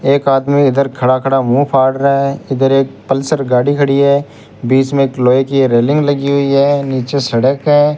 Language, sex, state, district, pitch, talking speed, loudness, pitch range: Hindi, male, Rajasthan, Bikaner, 135 Hz, 205 wpm, -13 LUFS, 130-140 Hz